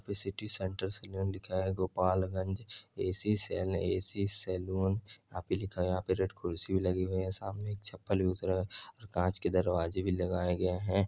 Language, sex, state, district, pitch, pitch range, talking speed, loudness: Hindi, male, Andhra Pradesh, Chittoor, 95 Hz, 90-100 Hz, 225 wpm, -34 LUFS